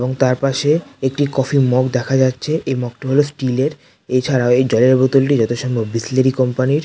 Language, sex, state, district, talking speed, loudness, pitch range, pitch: Bengali, male, West Bengal, North 24 Parganas, 190 wpm, -16 LUFS, 125-135 Hz, 130 Hz